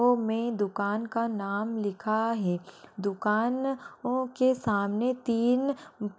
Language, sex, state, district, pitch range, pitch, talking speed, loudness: Hindi, female, Uttar Pradesh, Budaun, 205-245 Hz, 225 Hz, 125 wpm, -29 LUFS